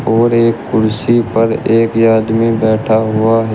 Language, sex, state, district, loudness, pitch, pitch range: Hindi, male, Uttar Pradesh, Shamli, -12 LUFS, 115 Hz, 110-115 Hz